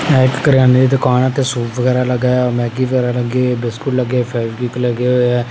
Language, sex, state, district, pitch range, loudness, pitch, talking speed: Hindi, male, Punjab, Pathankot, 120-130 Hz, -15 LUFS, 125 Hz, 150 wpm